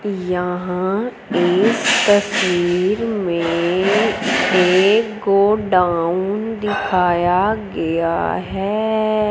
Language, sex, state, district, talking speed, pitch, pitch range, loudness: Hindi, female, Punjab, Fazilka, 60 wpm, 195 Hz, 180-210 Hz, -17 LUFS